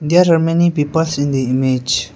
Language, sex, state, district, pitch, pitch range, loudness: English, male, Arunachal Pradesh, Lower Dibang Valley, 150 Hz, 130-165 Hz, -15 LUFS